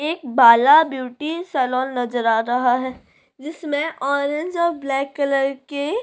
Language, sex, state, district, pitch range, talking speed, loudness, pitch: Hindi, female, Chhattisgarh, Korba, 255-310 Hz, 150 wpm, -19 LUFS, 275 Hz